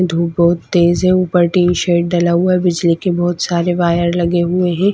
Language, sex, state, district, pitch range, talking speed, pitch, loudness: Hindi, female, West Bengal, Kolkata, 170-180 Hz, 220 wpm, 175 Hz, -14 LUFS